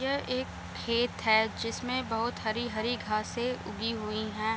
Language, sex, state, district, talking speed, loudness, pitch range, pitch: Hindi, female, Bihar, Sitamarhi, 155 wpm, -31 LUFS, 220-245 Hz, 230 Hz